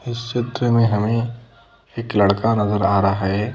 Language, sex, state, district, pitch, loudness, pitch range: Hindi, female, Madhya Pradesh, Bhopal, 115 Hz, -19 LUFS, 105-115 Hz